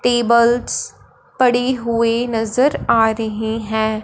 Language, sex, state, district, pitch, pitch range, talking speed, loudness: Hindi, female, Punjab, Fazilka, 230 Hz, 220-245 Hz, 105 wpm, -17 LUFS